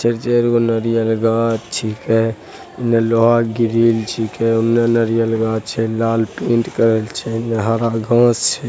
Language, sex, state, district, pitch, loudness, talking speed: Angika, male, Bihar, Begusarai, 115 Hz, -16 LUFS, 145 wpm